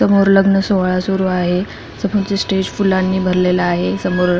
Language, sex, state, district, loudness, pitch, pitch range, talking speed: Marathi, female, Maharashtra, Pune, -16 LUFS, 190 Hz, 180-195 Hz, 165 wpm